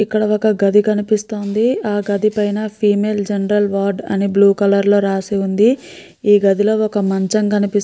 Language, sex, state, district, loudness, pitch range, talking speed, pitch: Telugu, female, Andhra Pradesh, Guntur, -16 LUFS, 200-215 Hz, 160 wpm, 205 Hz